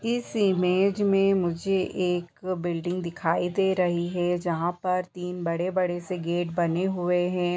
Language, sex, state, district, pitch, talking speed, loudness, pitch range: Hindi, female, Bihar, Bhagalpur, 180 Hz, 150 wpm, -26 LUFS, 175-185 Hz